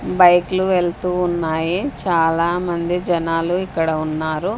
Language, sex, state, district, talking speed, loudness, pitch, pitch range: Telugu, female, Andhra Pradesh, Sri Satya Sai, 90 wpm, -18 LUFS, 175 Hz, 165-180 Hz